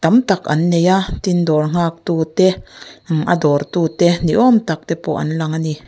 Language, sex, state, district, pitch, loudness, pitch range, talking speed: Mizo, female, Mizoram, Aizawl, 165 Hz, -16 LUFS, 160-185 Hz, 225 wpm